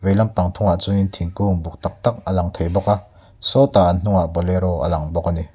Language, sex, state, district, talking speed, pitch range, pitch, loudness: Mizo, male, Mizoram, Aizawl, 240 wpm, 85-100 Hz, 95 Hz, -19 LUFS